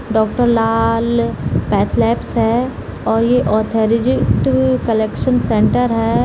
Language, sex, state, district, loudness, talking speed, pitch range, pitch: Hindi, female, Bihar, Samastipur, -15 LUFS, 95 wpm, 215-235 Hz, 225 Hz